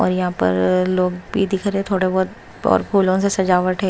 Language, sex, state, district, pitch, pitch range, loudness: Hindi, female, Maharashtra, Mumbai Suburban, 185 Hz, 180-195 Hz, -19 LUFS